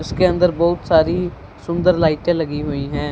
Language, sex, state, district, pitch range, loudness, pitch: Hindi, female, Punjab, Fazilka, 155-175 Hz, -18 LUFS, 170 Hz